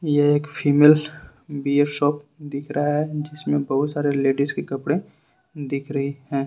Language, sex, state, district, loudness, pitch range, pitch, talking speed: Hindi, male, Jharkhand, Ranchi, -22 LUFS, 140-150 Hz, 145 Hz, 155 wpm